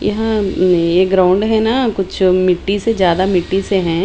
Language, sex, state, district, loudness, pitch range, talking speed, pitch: Hindi, female, Bihar, Patna, -14 LUFS, 180-210 Hz, 195 wpm, 190 Hz